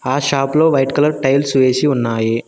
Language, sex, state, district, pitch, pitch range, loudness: Telugu, male, Telangana, Mahabubabad, 135 Hz, 130-145 Hz, -15 LUFS